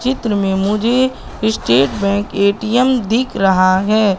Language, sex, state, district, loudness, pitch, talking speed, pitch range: Hindi, female, Madhya Pradesh, Katni, -15 LUFS, 210 Hz, 130 wpm, 195-235 Hz